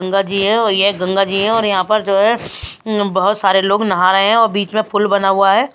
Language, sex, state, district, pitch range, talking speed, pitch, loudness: Hindi, female, Bihar, West Champaran, 195-215 Hz, 270 wpm, 200 Hz, -14 LUFS